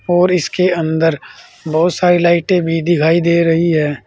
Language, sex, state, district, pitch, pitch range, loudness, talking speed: Hindi, male, Uttar Pradesh, Saharanpur, 170 Hz, 165-175 Hz, -14 LUFS, 160 wpm